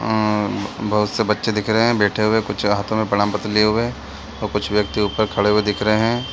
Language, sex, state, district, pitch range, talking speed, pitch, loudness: Hindi, male, Chhattisgarh, Bilaspur, 105-110 Hz, 255 wpm, 105 Hz, -19 LUFS